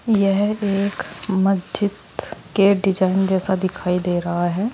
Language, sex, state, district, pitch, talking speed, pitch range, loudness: Hindi, female, Uttar Pradesh, Saharanpur, 195 Hz, 125 wpm, 185-200 Hz, -19 LUFS